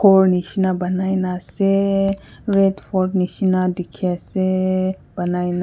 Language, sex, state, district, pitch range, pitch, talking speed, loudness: Nagamese, female, Nagaland, Kohima, 180-195 Hz, 185 Hz, 105 wpm, -19 LUFS